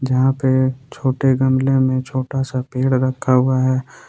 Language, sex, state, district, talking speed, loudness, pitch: Hindi, male, Jharkhand, Ranchi, 160 wpm, -18 LUFS, 130 Hz